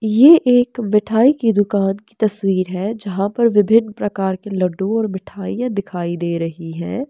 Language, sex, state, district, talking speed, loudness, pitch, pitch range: Hindi, female, Bihar, West Champaran, 170 wpm, -17 LUFS, 205 Hz, 190-225 Hz